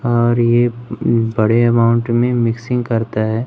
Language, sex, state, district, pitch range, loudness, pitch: Hindi, male, Madhya Pradesh, Umaria, 115-120 Hz, -15 LUFS, 120 Hz